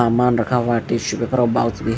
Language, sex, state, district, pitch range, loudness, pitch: Hindi, male, Maharashtra, Mumbai Suburban, 115-120 Hz, -19 LUFS, 115 Hz